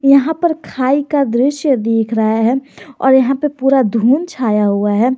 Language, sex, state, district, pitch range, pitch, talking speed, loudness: Hindi, male, Jharkhand, Garhwa, 225-280 Hz, 265 Hz, 185 wpm, -14 LUFS